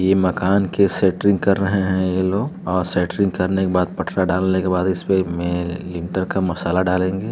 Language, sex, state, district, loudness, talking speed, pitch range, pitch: Bhojpuri, male, Uttar Pradesh, Deoria, -19 LUFS, 205 wpm, 90-95 Hz, 95 Hz